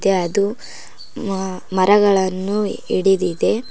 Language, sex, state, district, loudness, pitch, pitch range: Kannada, female, Karnataka, Koppal, -18 LUFS, 195 Hz, 185-205 Hz